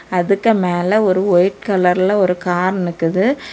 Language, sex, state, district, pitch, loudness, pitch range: Tamil, female, Tamil Nadu, Kanyakumari, 185 Hz, -16 LUFS, 180-200 Hz